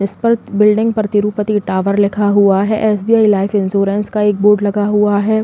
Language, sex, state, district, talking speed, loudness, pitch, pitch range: Hindi, female, Uttar Pradesh, Jalaun, 200 wpm, -14 LUFS, 205 Hz, 200-210 Hz